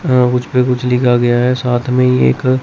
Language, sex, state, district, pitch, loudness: Hindi, male, Chandigarh, Chandigarh, 125 Hz, -13 LUFS